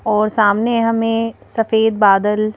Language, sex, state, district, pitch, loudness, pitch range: Hindi, female, Madhya Pradesh, Bhopal, 220 Hz, -15 LUFS, 210-225 Hz